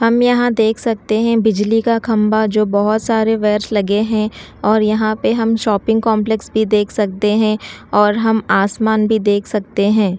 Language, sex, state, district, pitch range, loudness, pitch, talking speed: Hindi, female, Chhattisgarh, Raipur, 210-225 Hz, -15 LUFS, 215 Hz, 180 wpm